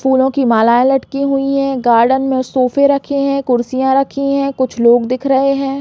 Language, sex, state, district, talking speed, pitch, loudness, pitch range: Hindi, female, Chhattisgarh, Balrampur, 195 wpm, 265 Hz, -14 LUFS, 255-275 Hz